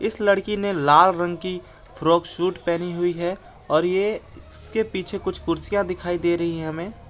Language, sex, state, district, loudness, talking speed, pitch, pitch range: Hindi, male, Jharkhand, Garhwa, -22 LUFS, 185 wpm, 175 Hz, 170-195 Hz